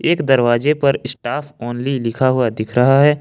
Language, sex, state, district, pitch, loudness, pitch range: Hindi, male, Jharkhand, Ranchi, 130 Hz, -17 LUFS, 120-145 Hz